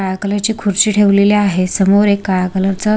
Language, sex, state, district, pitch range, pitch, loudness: Marathi, female, Maharashtra, Sindhudurg, 190-205 Hz, 200 Hz, -13 LUFS